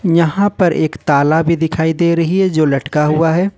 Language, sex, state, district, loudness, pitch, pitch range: Hindi, male, Jharkhand, Ranchi, -14 LUFS, 165 Hz, 155-170 Hz